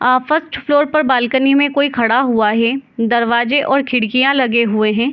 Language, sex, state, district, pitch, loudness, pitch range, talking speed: Hindi, female, Bihar, Gopalganj, 255 Hz, -14 LUFS, 235-280 Hz, 185 wpm